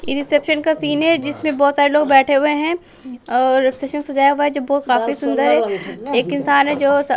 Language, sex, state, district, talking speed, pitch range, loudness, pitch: Hindi, male, Bihar, West Champaran, 235 wpm, 265-295 Hz, -16 LUFS, 285 Hz